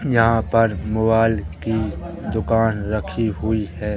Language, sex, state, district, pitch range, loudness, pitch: Hindi, male, Madhya Pradesh, Katni, 105-115 Hz, -20 LUFS, 110 Hz